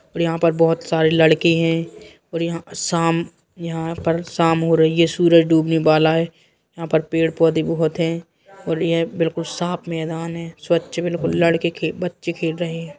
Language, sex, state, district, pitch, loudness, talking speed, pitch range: Bundeli, male, Uttar Pradesh, Jalaun, 165 Hz, -19 LUFS, 180 wpm, 165-170 Hz